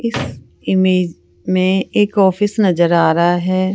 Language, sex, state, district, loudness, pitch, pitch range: Hindi, female, Rajasthan, Jaipur, -15 LUFS, 185 Hz, 165-190 Hz